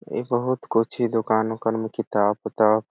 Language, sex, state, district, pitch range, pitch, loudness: Awadhi, male, Chhattisgarh, Balrampur, 110-115 Hz, 110 Hz, -23 LUFS